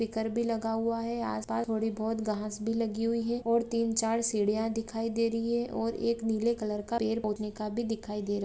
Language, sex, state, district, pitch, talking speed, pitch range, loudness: Hindi, female, Jharkhand, Jamtara, 225 Hz, 190 wpm, 215-230 Hz, -31 LUFS